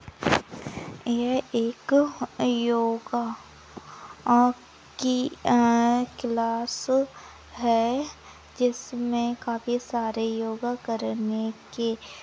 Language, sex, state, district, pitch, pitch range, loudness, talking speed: Hindi, female, Maharashtra, Nagpur, 240 Hz, 230-245 Hz, -26 LUFS, 70 wpm